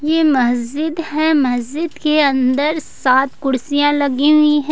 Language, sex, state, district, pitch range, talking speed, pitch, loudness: Hindi, female, Jharkhand, Ranchi, 265-305 Hz, 140 wpm, 290 Hz, -16 LUFS